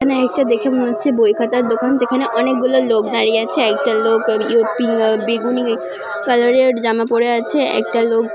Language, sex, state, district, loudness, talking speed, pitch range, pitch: Bengali, female, West Bengal, Paschim Medinipur, -16 LUFS, 180 wpm, 225-250 Hz, 235 Hz